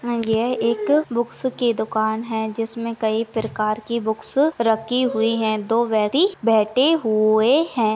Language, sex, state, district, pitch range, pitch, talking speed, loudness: Hindi, female, Chhattisgarh, Sarguja, 220-240 Hz, 225 Hz, 135 wpm, -20 LUFS